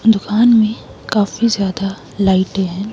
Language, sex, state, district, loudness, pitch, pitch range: Hindi, female, Himachal Pradesh, Shimla, -15 LUFS, 205 Hz, 195-220 Hz